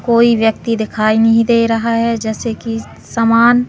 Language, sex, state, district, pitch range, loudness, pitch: Hindi, female, Madhya Pradesh, Katni, 225-235 Hz, -14 LUFS, 230 Hz